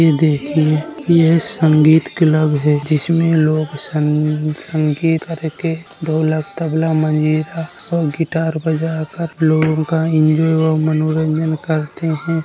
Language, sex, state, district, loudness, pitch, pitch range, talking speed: Bundeli, male, Uttar Pradesh, Jalaun, -16 LUFS, 155 Hz, 155-165 Hz, 115 wpm